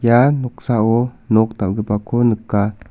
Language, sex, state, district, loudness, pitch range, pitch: Garo, male, Meghalaya, South Garo Hills, -17 LUFS, 105-120 Hz, 110 Hz